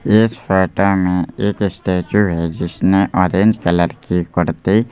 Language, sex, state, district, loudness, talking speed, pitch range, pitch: Hindi, male, Madhya Pradesh, Bhopal, -16 LUFS, 145 wpm, 90-105 Hz, 95 Hz